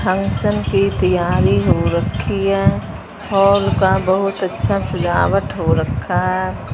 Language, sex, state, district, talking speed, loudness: Hindi, male, Punjab, Fazilka, 125 wpm, -17 LUFS